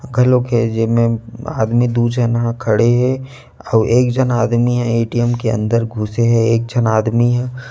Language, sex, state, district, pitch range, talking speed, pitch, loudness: Chhattisgarhi, male, Chhattisgarh, Rajnandgaon, 115-120 Hz, 195 wpm, 120 Hz, -16 LUFS